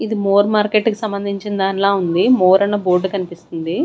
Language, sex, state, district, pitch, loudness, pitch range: Telugu, female, Andhra Pradesh, Sri Satya Sai, 200 Hz, -16 LUFS, 185-205 Hz